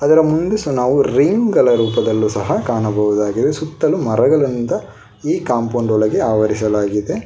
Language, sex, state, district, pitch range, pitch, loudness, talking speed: Kannada, male, Karnataka, Bangalore, 110-145 Hz, 115 Hz, -16 LUFS, 125 wpm